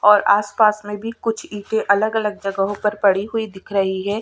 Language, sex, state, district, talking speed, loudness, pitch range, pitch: Hindi, female, Chhattisgarh, Sukma, 200 wpm, -19 LUFS, 200-215 Hz, 205 Hz